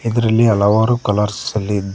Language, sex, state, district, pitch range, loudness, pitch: Kannada, male, Karnataka, Koppal, 105-115 Hz, -16 LUFS, 105 Hz